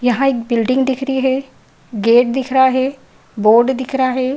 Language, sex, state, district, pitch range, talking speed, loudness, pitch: Hindi, female, Bihar, Saharsa, 235-265 Hz, 190 wpm, -15 LUFS, 260 Hz